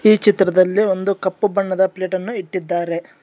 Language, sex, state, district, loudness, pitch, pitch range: Kannada, male, Karnataka, Bangalore, -18 LUFS, 190 Hz, 185-205 Hz